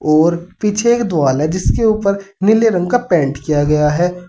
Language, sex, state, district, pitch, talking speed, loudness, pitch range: Hindi, male, Uttar Pradesh, Saharanpur, 180 Hz, 195 wpm, -15 LUFS, 155-210 Hz